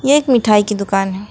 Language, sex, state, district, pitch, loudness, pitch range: Hindi, female, West Bengal, Alipurduar, 210 Hz, -14 LUFS, 195-250 Hz